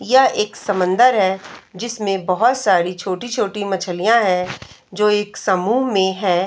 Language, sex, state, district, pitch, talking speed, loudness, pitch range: Hindi, female, Uttar Pradesh, Varanasi, 200 Hz, 130 wpm, -18 LUFS, 185-230 Hz